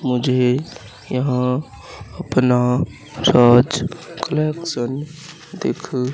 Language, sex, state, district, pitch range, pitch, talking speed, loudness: Hindi, male, Madhya Pradesh, Katni, 125-155 Hz, 130 Hz, 50 wpm, -19 LUFS